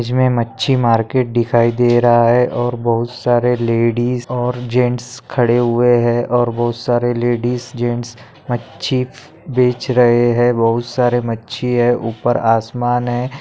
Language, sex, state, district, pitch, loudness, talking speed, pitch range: Hindi, male, Maharashtra, Chandrapur, 120 Hz, -16 LUFS, 150 wpm, 120-125 Hz